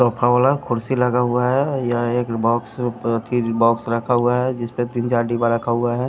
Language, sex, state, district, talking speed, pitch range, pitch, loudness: Hindi, male, Punjab, Kapurthala, 205 wpm, 115-125 Hz, 120 Hz, -19 LUFS